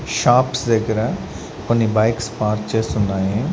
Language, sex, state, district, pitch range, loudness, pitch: Telugu, male, Andhra Pradesh, Sri Satya Sai, 105-115 Hz, -19 LUFS, 110 Hz